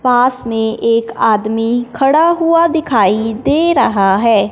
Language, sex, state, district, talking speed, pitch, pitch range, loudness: Hindi, male, Punjab, Fazilka, 135 wpm, 230 Hz, 220-280 Hz, -13 LUFS